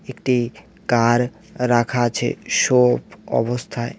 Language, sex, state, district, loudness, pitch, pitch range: Bengali, male, West Bengal, Alipurduar, -20 LUFS, 120 Hz, 120-125 Hz